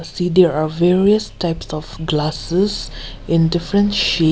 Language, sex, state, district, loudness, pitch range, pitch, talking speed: English, female, Nagaland, Kohima, -17 LUFS, 155-185 Hz, 165 Hz, 140 wpm